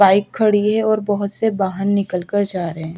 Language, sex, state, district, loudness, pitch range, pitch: Hindi, female, Haryana, Rohtak, -18 LUFS, 190-210 Hz, 200 Hz